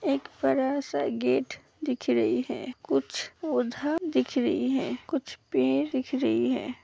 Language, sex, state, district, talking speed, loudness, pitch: Hindi, female, Uttar Pradesh, Hamirpur, 140 wpm, -28 LUFS, 265 Hz